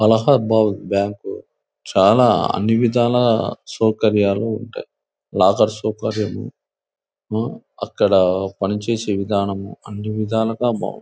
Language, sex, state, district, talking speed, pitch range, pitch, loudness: Telugu, male, Andhra Pradesh, Anantapur, 95 wpm, 100-115 Hz, 110 Hz, -18 LUFS